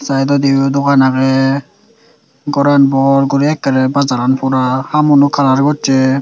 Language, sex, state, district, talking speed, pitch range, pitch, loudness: Chakma, male, Tripura, Dhalai, 125 wpm, 135-140 Hz, 135 Hz, -12 LUFS